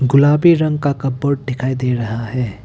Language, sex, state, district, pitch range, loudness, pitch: Hindi, male, Arunachal Pradesh, Papum Pare, 125-145 Hz, -16 LUFS, 135 Hz